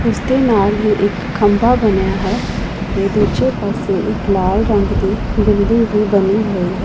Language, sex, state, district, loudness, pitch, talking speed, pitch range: Punjabi, female, Punjab, Pathankot, -15 LUFS, 205 Hz, 175 wpm, 200-215 Hz